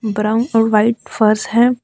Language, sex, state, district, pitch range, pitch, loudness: Hindi, female, Jharkhand, Deoghar, 215-235 Hz, 225 Hz, -15 LUFS